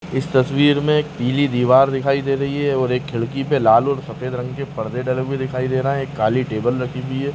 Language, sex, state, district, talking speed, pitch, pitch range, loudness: Kumaoni, male, Uttarakhand, Tehri Garhwal, 260 wpm, 135 Hz, 125-140 Hz, -19 LUFS